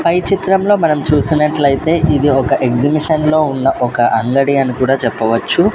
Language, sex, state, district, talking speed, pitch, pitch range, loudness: Telugu, male, Andhra Pradesh, Sri Satya Sai, 135 wpm, 145 Hz, 135-155 Hz, -13 LUFS